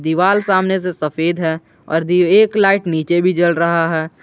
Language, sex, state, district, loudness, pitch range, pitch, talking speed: Hindi, male, Jharkhand, Garhwa, -15 LUFS, 160-190 Hz, 175 Hz, 200 wpm